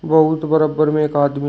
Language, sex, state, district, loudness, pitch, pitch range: Hindi, male, Uttar Pradesh, Shamli, -16 LUFS, 155 Hz, 150-155 Hz